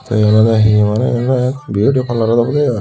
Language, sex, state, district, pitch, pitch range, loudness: Chakma, male, Tripura, Unakoti, 120 Hz, 110-125 Hz, -13 LUFS